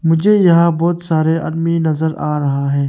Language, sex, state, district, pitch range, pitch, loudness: Hindi, male, Arunachal Pradesh, Longding, 155-170 Hz, 160 Hz, -15 LUFS